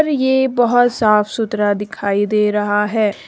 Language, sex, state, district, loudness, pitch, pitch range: Hindi, female, Jharkhand, Deoghar, -16 LUFS, 215 Hz, 210-245 Hz